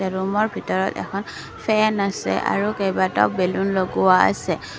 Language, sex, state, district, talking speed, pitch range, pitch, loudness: Assamese, female, Assam, Kamrup Metropolitan, 125 wpm, 190-205 Hz, 195 Hz, -21 LUFS